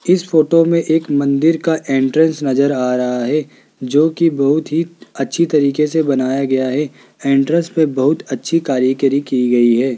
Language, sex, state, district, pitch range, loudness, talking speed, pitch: Hindi, male, Rajasthan, Jaipur, 135-160 Hz, -15 LUFS, 175 wpm, 140 Hz